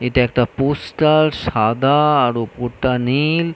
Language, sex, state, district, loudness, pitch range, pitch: Bengali, male, West Bengal, North 24 Parganas, -17 LUFS, 125-150 Hz, 130 Hz